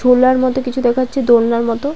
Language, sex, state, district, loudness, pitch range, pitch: Bengali, female, West Bengal, Paschim Medinipur, -14 LUFS, 240-255 Hz, 255 Hz